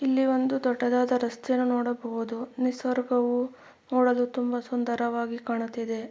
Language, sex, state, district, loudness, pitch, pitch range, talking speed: Kannada, female, Karnataka, Mysore, -27 LUFS, 245 Hz, 235-255 Hz, 100 wpm